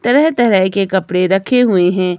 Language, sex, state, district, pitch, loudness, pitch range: Hindi, male, Himachal Pradesh, Shimla, 195 Hz, -13 LUFS, 185-240 Hz